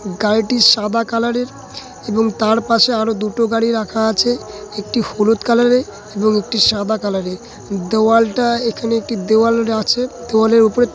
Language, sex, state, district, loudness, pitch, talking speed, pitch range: Bengali, male, West Bengal, Dakshin Dinajpur, -15 LUFS, 225 Hz, 150 wpm, 215-230 Hz